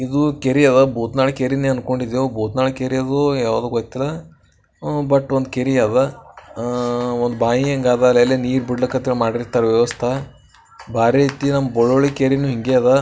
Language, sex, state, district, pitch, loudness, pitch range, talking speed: Kannada, male, Karnataka, Bijapur, 130 Hz, -18 LUFS, 120-135 Hz, 125 wpm